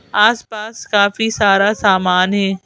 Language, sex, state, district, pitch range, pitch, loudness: Hindi, female, Madhya Pradesh, Bhopal, 195-215 Hz, 205 Hz, -14 LUFS